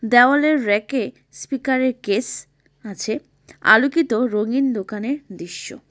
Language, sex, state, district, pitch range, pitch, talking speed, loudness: Bengali, female, West Bengal, Alipurduar, 205-265 Hz, 230 Hz, 90 wpm, -20 LUFS